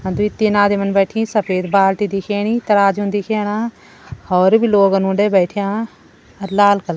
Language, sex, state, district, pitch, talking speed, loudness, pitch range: Garhwali, female, Uttarakhand, Tehri Garhwal, 205 Hz, 145 wpm, -16 LUFS, 195-210 Hz